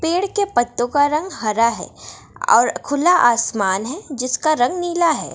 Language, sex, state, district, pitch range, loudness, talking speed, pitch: Hindi, female, Bihar, Darbhanga, 235-335 Hz, -18 LUFS, 180 wpm, 275 Hz